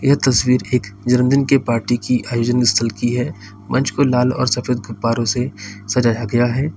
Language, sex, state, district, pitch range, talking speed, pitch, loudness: Hindi, male, Uttar Pradesh, Lalitpur, 115-125 Hz, 185 wpm, 125 Hz, -17 LUFS